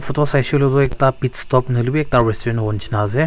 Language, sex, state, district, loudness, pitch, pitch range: Nagamese, male, Nagaland, Kohima, -15 LUFS, 130 Hz, 120-140 Hz